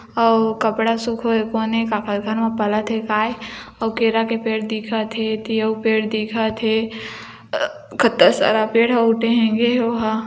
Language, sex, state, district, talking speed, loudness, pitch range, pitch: Hindi, female, Chhattisgarh, Bilaspur, 140 wpm, -19 LUFS, 220-230 Hz, 225 Hz